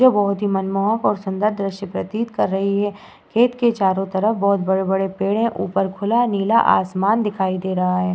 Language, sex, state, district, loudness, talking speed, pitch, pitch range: Hindi, female, Uttar Pradesh, Muzaffarnagar, -19 LUFS, 205 wpm, 200 Hz, 190-215 Hz